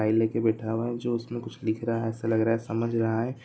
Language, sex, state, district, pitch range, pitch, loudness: Hindi, male, Jharkhand, Jamtara, 110-115 Hz, 115 Hz, -28 LUFS